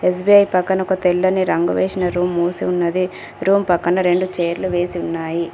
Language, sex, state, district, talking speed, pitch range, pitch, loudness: Telugu, female, Telangana, Komaram Bheem, 160 wpm, 175-185 Hz, 180 Hz, -18 LUFS